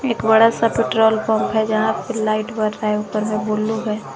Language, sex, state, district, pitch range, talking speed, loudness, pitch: Hindi, female, Jharkhand, Garhwa, 215-225 Hz, 215 wpm, -18 LUFS, 220 Hz